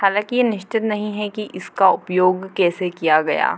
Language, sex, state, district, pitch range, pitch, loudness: Hindi, female, Bihar, Gopalganj, 180-210 Hz, 200 Hz, -19 LUFS